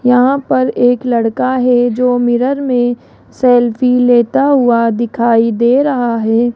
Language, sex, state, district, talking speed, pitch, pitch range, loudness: Hindi, female, Rajasthan, Jaipur, 135 wpm, 245 Hz, 235-255 Hz, -12 LUFS